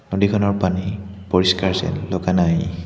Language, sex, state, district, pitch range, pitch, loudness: Assamese, male, Assam, Hailakandi, 90-100 Hz, 95 Hz, -19 LUFS